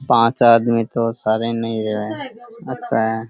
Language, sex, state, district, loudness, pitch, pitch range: Rajasthani, male, Rajasthan, Churu, -18 LUFS, 115 Hz, 110-120 Hz